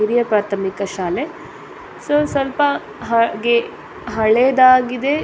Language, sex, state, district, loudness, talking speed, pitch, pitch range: Kannada, female, Karnataka, Dakshina Kannada, -17 LUFS, 90 wpm, 235 Hz, 215-270 Hz